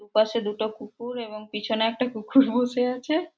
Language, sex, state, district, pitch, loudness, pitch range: Bengali, female, West Bengal, Purulia, 230 Hz, -25 LUFS, 215-250 Hz